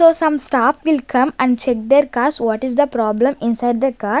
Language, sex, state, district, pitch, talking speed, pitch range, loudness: English, female, Punjab, Kapurthala, 260 Hz, 230 wpm, 240-290 Hz, -16 LUFS